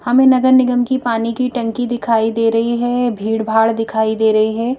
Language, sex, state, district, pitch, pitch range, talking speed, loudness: Hindi, female, Madhya Pradesh, Bhopal, 230 Hz, 225-245 Hz, 200 wpm, -15 LUFS